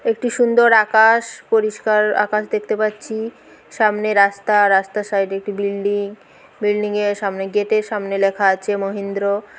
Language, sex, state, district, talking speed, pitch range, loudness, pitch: Bengali, female, West Bengal, Paschim Medinipur, 145 wpm, 200-215 Hz, -18 LUFS, 210 Hz